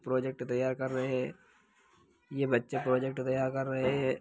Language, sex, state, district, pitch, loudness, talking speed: Hindi, male, Bihar, Lakhisarai, 130 Hz, -32 LUFS, 170 wpm